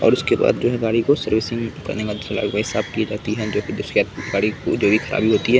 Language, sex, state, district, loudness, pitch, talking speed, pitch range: Hindi, male, Bihar, Kishanganj, -20 LUFS, 110 Hz, 280 wpm, 105-115 Hz